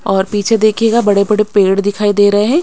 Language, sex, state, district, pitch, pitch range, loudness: Hindi, female, Maharashtra, Mumbai Suburban, 205 Hz, 200-215 Hz, -12 LUFS